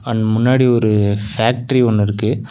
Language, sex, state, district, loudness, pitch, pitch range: Tamil, male, Tamil Nadu, Nilgiris, -15 LUFS, 115 Hz, 105-120 Hz